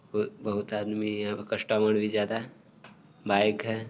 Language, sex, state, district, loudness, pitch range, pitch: Hindi, male, Bihar, Sitamarhi, -29 LUFS, 105-150 Hz, 105 Hz